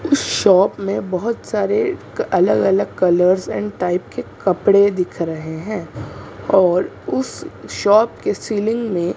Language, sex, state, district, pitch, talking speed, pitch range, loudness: Hindi, female, Maharashtra, Mumbai Suburban, 195 Hz, 135 wpm, 180-215 Hz, -18 LUFS